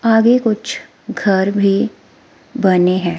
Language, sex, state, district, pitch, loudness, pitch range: Hindi, female, Himachal Pradesh, Shimla, 210 Hz, -15 LUFS, 190-230 Hz